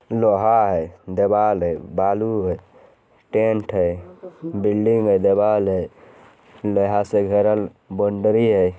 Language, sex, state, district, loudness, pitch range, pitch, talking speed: Hindi, male, Bihar, Jamui, -20 LUFS, 100-110 Hz, 105 Hz, 115 wpm